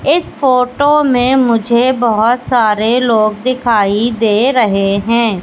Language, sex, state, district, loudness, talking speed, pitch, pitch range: Hindi, female, Madhya Pradesh, Katni, -12 LUFS, 120 wpm, 235 Hz, 220-255 Hz